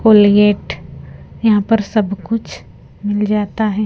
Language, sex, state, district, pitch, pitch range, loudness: Hindi, female, Punjab, Kapurthala, 210 Hz, 205-220 Hz, -15 LUFS